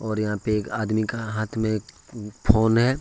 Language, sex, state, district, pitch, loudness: Hindi, male, Jharkhand, Ranchi, 110 Hz, -24 LUFS